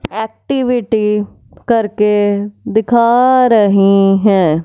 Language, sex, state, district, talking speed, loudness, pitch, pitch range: Hindi, female, Punjab, Fazilka, 65 wpm, -12 LUFS, 210 Hz, 205-235 Hz